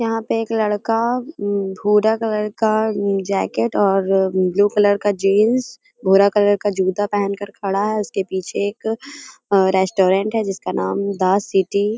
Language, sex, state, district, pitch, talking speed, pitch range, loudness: Hindi, female, Bihar, Jamui, 205 Hz, 155 wpm, 195-220 Hz, -18 LUFS